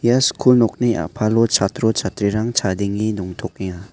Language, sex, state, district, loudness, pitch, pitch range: Garo, male, Meghalaya, West Garo Hills, -18 LUFS, 110 Hz, 95-115 Hz